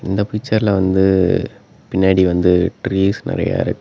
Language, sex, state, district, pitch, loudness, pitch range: Tamil, male, Tamil Nadu, Namakkal, 95 Hz, -16 LUFS, 95-100 Hz